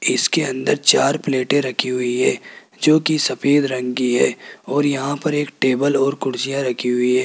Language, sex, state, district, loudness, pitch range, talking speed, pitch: Hindi, male, Rajasthan, Jaipur, -18 LUFS, 125-145 Hz, 190 wpm, 135 Hz